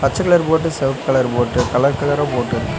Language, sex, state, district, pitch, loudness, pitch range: Tamil, male, Tamil Nadu, Nilgiris, 135 Hz, -17 LUFS, 125-160 Hz